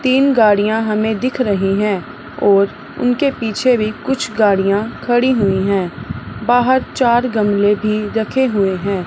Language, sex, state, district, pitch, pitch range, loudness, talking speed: Hindi, female, Punjab, Fazilka, 215 Hz, 200-245 Hz, -16 LUFS, 145 wpm